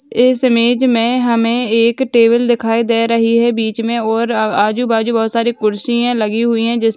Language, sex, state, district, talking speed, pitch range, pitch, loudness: Hindi, female, Bihar, Saharsa, 200 wpm, 225-240 Hz, 230 Hz, -14 LUFS